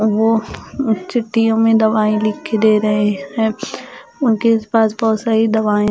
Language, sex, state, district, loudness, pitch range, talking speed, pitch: Hindi, female, Punjab, Fazilka, -16 LUFS, 215-225 Hz, 140 wpm, 220 Hz